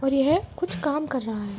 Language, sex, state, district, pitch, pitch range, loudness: Hindi, female, Uttar Pradesh, Varanasi, 275 Hz, 230-305 Hz, -25 LUFS